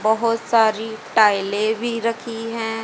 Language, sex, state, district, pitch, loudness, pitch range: Hindi, female, Haryana, Jhajjar, 225 Hz, -20 LUFS, 220-230 Hz